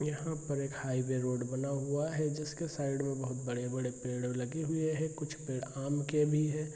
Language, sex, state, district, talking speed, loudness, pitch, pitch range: Hindi, male, Bihar, Araria, 195 wpm, -35 LUFS, 140 Hz, 130-150 Hz